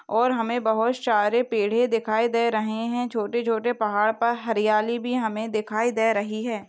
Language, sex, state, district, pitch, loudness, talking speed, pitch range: Hindi, female, Maharashtra, Pune, 225 Hz, -24 LUFS, 180 wpm, 215-235 Hz